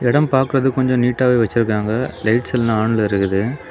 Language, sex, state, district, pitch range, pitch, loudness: Tamil, male, Tamil Nadu, Kanyakumari, 110-130 Hz, 120 Hz, -17 LUFS